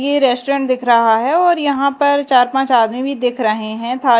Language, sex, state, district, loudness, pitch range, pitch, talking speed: Hindi, female, Madhya Pradesh, Dhar, -15 LUFS, 235-280 Hz, 255 Hz, 215 wpm